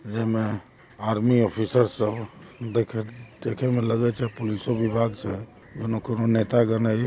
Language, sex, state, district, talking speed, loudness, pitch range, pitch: Hindi, male, Jharkhand, Jamtara, 160 wpm, -25 LUFS, 110-120 Hz, 115 Hz